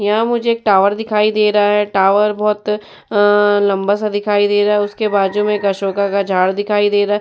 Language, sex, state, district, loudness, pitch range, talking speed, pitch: Hindi, female, Uttar Pradesh, Jyotiba Phule Nagar, -15 LUFS, 200-210 Hz, 225 wpm, 205 Hz